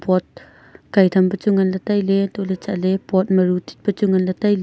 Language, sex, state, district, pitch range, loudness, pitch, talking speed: Wancho, female, Arunachal Pradesh, Longding, 185-200 Hz, -19 LUFS, 190 Hz, 245 wpm